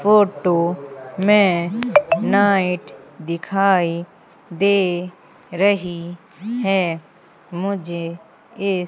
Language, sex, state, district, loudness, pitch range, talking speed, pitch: Hindi, female, Madhya Pradesh, Umaria, -19 LUFS, 170-200 Hz, 60 wpm, 185 Hz